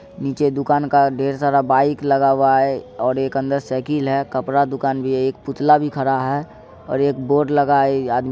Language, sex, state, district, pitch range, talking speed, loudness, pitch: Maithili, male, Bihar, Supaul, 135-145 Hz, 230 wpm, -18 LUFS, 140 Hz